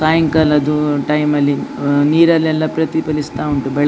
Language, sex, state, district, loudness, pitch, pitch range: Kannada, female, Karnataka, Dakshina Kannada, -15 LUFS, 150 Hz, 145-160 Hz